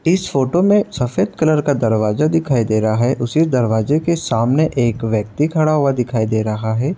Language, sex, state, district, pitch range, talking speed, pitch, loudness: Hindi, male, Uttar Pradesh, Etah, 115-155 Hz, 195 wpm, 130 Hz, -17 LUFS